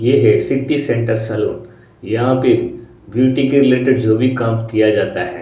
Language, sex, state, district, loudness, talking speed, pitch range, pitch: Hindi, male, Odisha, Sambalpur, -15 LUFS, 175 wpm, 110-130 Hz, 125 Hz